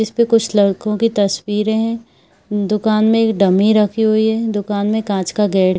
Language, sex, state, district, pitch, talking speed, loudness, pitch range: Hindi, female, Jharkhand, Sahebganj, 215 Hz, 215 wpm, -16 LUFS, 205-220 Hz